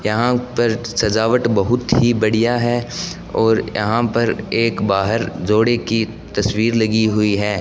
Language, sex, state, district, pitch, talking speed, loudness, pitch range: Hindi, male, Rajasthan, Bikaner, 110 Hz, 140 wpm, -17 LUFS, 105-120 Hz